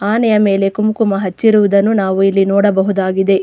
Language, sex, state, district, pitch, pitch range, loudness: Kannada, female, Karnataka, Dakshina Kannada, 200 Hz, 195-210 Hz, -13 LUFS